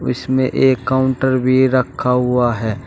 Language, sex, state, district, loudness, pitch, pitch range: Hindi, male, Uttar Pradesh, Shamli, -16 LUFS, 130 Hz, 120-130 Hz